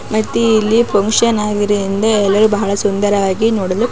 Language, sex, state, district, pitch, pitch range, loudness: Kannada, female, Karnataka, Mysore, 210 Hz, 200-220 Hz, -14 LUFS